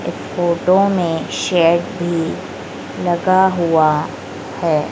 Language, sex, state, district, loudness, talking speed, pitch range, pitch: Hindi, female, Madhya Pradesh, Dhar, -17 LUFS, 75 wpm, 160-180 Hz, 170 Hz